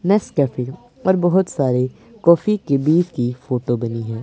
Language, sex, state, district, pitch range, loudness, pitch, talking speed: Hindi, male, Punjab, Pathankot, 125-185 Hz, -19 LUFS, 140 Hz, 155 wpm